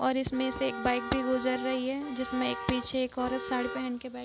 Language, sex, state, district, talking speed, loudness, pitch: Hindi, female, Bihar, East Champaran, 280 wpm, -31 LUFS, 245 Hz